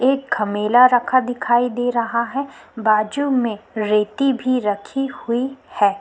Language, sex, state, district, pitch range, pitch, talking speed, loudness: Hindi, female, Uttarakhand, Tehri Garhwal, 215-265 Hz, 245 Hz, 140 wpm, -19 LUFS